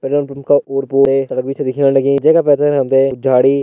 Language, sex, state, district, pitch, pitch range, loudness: Hindi, male, Uttarakhand, Tehri Garhwal, 135 Hz, 135-145 Hz, -14 LUFS